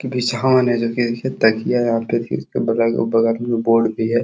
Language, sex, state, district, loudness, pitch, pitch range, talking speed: Hindi, male, Uttar Pradesh, Hamirpur, -18 LUFS, 115 Hz, 115-120 Hz, 155 wpm